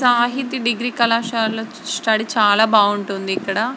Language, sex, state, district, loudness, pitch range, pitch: Telugu, female, Andhra Pradesh, Srikakulam, -18 LUFS, 210-240 Hz, 225 Hz